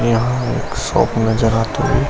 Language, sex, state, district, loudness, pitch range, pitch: Hindi, male, Uttar Pradesh, Gorakhpur, -17 LUFS, 115-125 Hz, 115 Hz